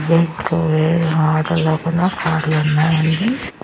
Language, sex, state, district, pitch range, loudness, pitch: Telugu, female, Andhra Pradesh, Annamaya, 155-165 Hz, -17 LUFS, 160 Hz